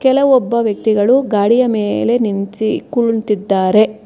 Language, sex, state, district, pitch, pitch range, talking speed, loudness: Kannada, female, Karnataka, Bangalore, 220 Hz, 205-240 Hz, 90 wpm, -14 LUFS